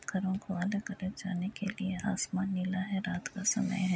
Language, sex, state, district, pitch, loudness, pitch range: Hindi, female, Uttar Pradesh, Deoria, 190 Hz, -34 LUFS, 185-200 Hz